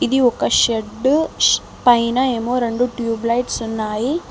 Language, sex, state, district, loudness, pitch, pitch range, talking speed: Telugu, female, Telangana, Mahabubabad, -18 LUFS, 240 Hz, 230-250 Hz, 125 wpm